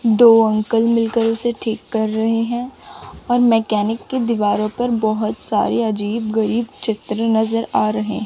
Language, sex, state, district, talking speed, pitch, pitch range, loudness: Hindi, female, Chandigarh, Chandigarh, 150 wpm, 225 Hz, 215-230 Hz, -18 LUFS